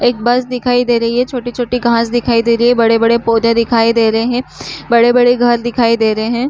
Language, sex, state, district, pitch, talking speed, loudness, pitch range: Hindi, female, Chhattisgarh, Korba, 235 Hz, 260 wpm, -13 LUFS, 230-245 Hz